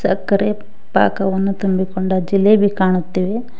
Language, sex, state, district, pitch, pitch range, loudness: Kannada, female, Karnataka, Koppal, 195 Hz, 185-205 Hz, -17 LUFS